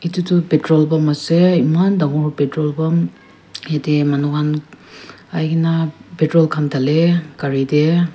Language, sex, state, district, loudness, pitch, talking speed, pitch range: Nagamese, female, Nagaland, Kohima, -16 LUFS, 155 Hz, 140 wpm, 150-165 Hz